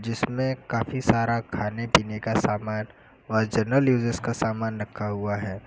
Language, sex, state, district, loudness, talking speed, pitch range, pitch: Hindi, male, Uttar Pradesh, Lucknow, -26 LUFS, 160 wpm, 105-120 Hz, 110 Hz